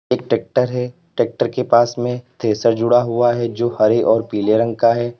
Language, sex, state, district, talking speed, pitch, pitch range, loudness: Hindi, male, Uttar Pradesh, Lalitpur, 210 wpm, 120 Hz, 115-120 Hz, -17 LUFS